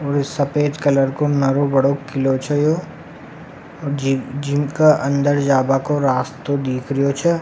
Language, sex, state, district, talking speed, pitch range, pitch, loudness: Rajasthani, male, Rajasthan, Nagaur, 140 wpm, 135-145 Hz, 140 Hz, -18 LUFS